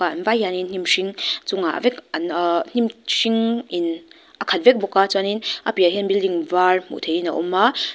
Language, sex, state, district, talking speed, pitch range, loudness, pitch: Mizo, female, Mizoram, Aizawl, 210 wpm, 180-240 Hz, -20 LUFS, 200 Hz